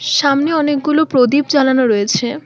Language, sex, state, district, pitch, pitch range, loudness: Bengali, female, West Bengal, Alipurduar, 280 Hz, 250-300 Hz, -14 LUFS